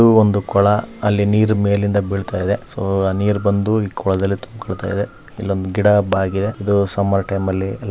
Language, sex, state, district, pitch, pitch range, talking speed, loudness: Kannada, male, Karnataka, Raichur, 100 Hz, 95-105 Hz, 190 wpm, -18 LUFS